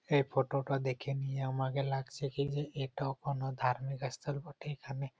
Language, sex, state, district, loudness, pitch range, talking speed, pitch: Bengali, male, West Bengal, Purulia, -36 LUFS, 135-140 Hz, 175 wpm, 135 Hz